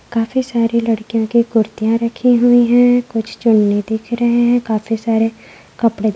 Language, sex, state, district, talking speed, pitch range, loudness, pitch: Hindi, female, Maharashtra, Aurangabad, 165 wpm, 225-240 Hz, -15 LUFS, 230 Hz